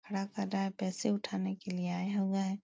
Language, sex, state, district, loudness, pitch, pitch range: Hindi, female, Uttar Pradesh, Etah, -35 LUFS, 195 Hz, 190-200 Hz